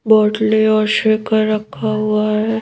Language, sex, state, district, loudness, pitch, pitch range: Hindi, female, Madhya Pradesh, Bhopal, -15 LUFS, 215 Hz, 215-220 Hz